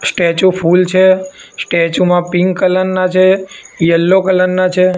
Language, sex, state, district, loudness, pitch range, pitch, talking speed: Gujarati, male, Gujarat, Gandhinagar, -12 LUFS, 175-185 Hz, 185 Hz, 155 wpm